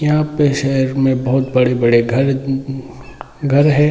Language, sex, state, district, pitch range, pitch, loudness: Hindi, male, Bihar, Sitamarhi, 130-145 Hz, 135 Hz, -15 LUFS